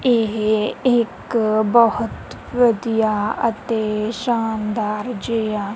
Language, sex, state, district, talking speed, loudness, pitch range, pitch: Punjabi, female, Punjab, Kapurthala, 75 wpm, -19 LUFS, 215-235 Hz, 220 Hz